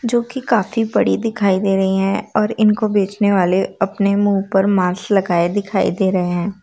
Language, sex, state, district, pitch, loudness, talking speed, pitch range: Hindi, female, Bihar, Darbhanga, 200 Hz, -17 LUFS, 190 wpm, 190-215 Hz